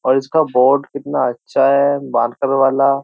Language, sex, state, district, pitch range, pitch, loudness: Hindi, male, Uttar Pradesh, Jyotiba Phule Nagar, 130-140 Hz, 135 Hz, -16 LUFS